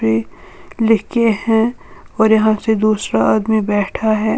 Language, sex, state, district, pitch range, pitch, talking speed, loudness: Hindi, female, Uttar Pradesh, Lalitpur, 210-225 Hz, 220 Hz, 135 wpm, -16 LUFS